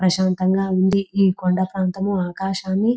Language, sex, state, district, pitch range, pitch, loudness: Telugu, female, Telangana, Nalgonda, 185-195 Hz, 190 Hz, -20 LUFS